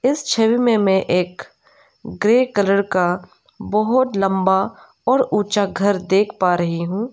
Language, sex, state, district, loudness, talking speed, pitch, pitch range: Hindi, female, Arunachal Pradesh, Lower Dibang Valley, -18 LUFS, 145 wpm, 200 Hz, 190-225 Hz